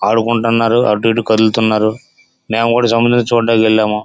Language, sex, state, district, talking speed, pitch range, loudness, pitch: Telugu, male, Andhra Pradesh, Srikakulam, 135 wpm, 110-115 Hz, -13 LUFS, 115 Hz